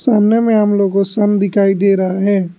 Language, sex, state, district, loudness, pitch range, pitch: Hindi, male, Arunachal Pradesh, Lower Dibang Valley, -13 LUFS, 195-210 Hz, 200 Hz